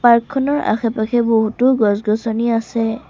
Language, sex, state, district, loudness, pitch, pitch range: Assamese, female, Assam, Sonitpur, -17 LUFS, 230 Hz, 220-240 Hz